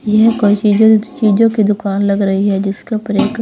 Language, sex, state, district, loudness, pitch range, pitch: Hindi, female, Haryana, Rohtak, -13 LUFS, 200-220 Hz, 210 Hz